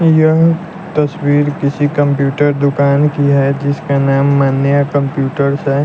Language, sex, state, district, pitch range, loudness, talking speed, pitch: Hindi, male, Bihar, West Champaran, 140-145 Hz, -13 LUFS, 125 wpm, 140 Hz